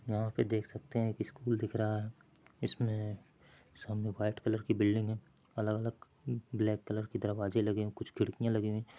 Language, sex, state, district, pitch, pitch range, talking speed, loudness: Hindi, male, Chhattisgarh, Bilaspur, 110 Hz, 105-115 Hz, 185 wpm, -36 LUFS